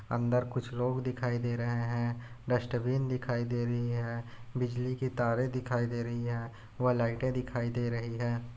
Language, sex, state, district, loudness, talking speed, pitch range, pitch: Hindi, male, Chhattisgarh, Bastar, -33 LUFS, 175 wpm, 120-125 Hz, 120 Hz